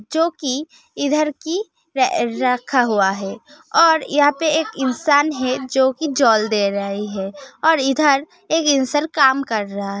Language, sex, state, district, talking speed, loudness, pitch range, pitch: Hindi, female, Uttar Pradesh, Hamirpur, 155 wpm, -18 LUFS, 235-315 Hz, 275 Hz